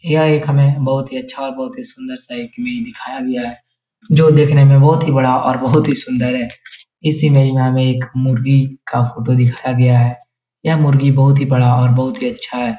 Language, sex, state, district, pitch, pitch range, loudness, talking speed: Hindi, male, Bihar, Supaul, 135 Hz, 125-155 Hz, -14 LUFS, 220 wpm